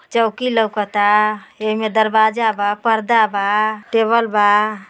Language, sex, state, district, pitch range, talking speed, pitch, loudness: Bhojpuri, female, Uttar Pradesh, Ghazipur, 210-225 Hz, 110 wpm, 215 Hz, -16 LUFS